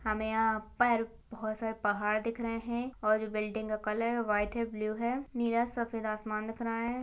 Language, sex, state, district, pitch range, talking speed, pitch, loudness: Hindi, female, Chhattisgarh, Balrampur, 215-235 Hz, 205 wpm, 225 Hz, -33 LUFS